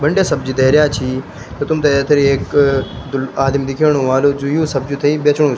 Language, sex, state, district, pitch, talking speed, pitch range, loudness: Garhwali, male, Uttarakhand, Tehri Garhwal, 140 Hz, 170 wpm, 135-150 Hz, -15 LUFS